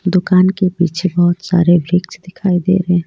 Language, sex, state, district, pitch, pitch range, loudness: Hindi, female, Jharkhand, Deoghar, 180 Hz, 175-185 Hz, -14 LUFS